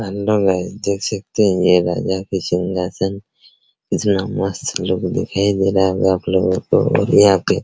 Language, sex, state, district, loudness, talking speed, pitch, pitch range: Hindi, male, Bihar, Araria, -17 LUFS, 175 wpm, 95 Hz, 90-100 Hz